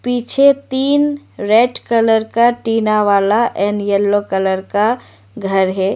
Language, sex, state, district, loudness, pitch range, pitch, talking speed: Hindi, female, Arunachal Pradesh, Lower Dibang Valley, -15 LUFS, 200-245 Hz, 215 Hz, 130 wpm